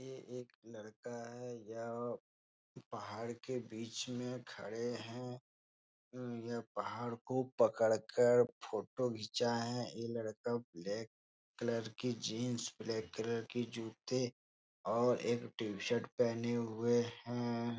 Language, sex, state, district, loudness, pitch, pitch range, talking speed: Hindi, male, Bihar, Jahanabad, -39 LUFS, 120 Hz, 110-120 Hz, 120 wpm